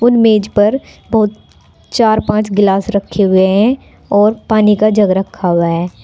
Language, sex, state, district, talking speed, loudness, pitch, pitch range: Hindi, female, Uttar Pradesh, Saharanpur, 160 wpm, -13 LUFS, 210 Hz, 195-220 Hz